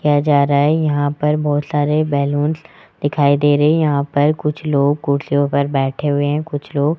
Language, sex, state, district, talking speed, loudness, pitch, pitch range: Hindi, male, Rajasthan, Jaipur, 215 wpm, -17 LUFS, 145 Hz, 145-150 Hz